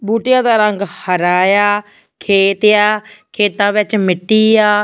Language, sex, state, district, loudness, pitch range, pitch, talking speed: Punjabi, female, Punjab, Fazilka, -13 LUFS, 200-215 Hz, 210 Hz, 150 wpm